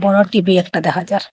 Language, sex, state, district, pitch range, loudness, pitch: Bengali, female, Assam, Hailakandi, 180-200 Hz, -15 LUFS, 195 Hz